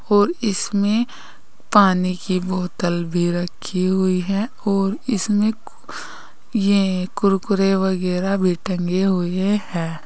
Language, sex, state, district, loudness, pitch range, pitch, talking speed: Hindi, female, Uttar Pradesh, Saharanpur, -20 LUFS, 180-205 Hz, 190 Hz, 115 wpm